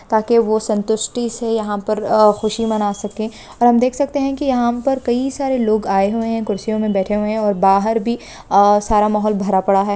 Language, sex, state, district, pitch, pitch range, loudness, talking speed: Hindi, female, West Bengal, Malda, 220 Hz, 210-235 Hz, -17 LUFS, 230 wpm